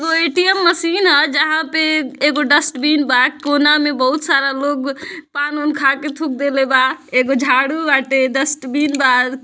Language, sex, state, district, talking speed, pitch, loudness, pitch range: Bhojpuri, female, Uttar Pradesh, Deoria, 160 wpm, 290 Hz, -15 LUFS, 270-310 Hz